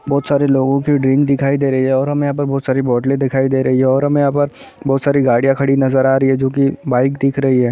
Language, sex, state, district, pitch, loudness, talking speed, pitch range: Hindi, male, Chhattisgarh, Sarguja, 135 Hz, -15 LUFS, 295 wpm, 130-140 Hz